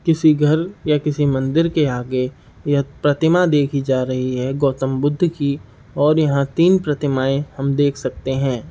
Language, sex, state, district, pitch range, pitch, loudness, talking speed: Hindi, male, Bihar, Saharsa, 130-150 Hz, 140 Hz, -18 LUFS, 165 wpm